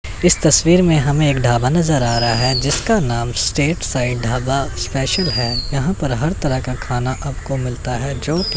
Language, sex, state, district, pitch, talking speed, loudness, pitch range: Hindi, male, Chandigarh, Chandigarh, 135 Hz, 195 wpm, -17 LUFS, 125-155 Hz